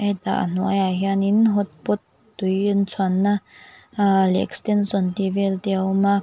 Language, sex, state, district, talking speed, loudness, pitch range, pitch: Mizo, female, Mizoram, Aizawl, 165 wpm, -21 LUFS, 190-205 Hz, 195 Hz